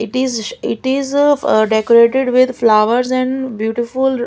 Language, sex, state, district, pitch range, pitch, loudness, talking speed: English, female, Maharashtra, Gondia, 230-260 Hz, 250 Hz, -14 LUFS, 125 wpm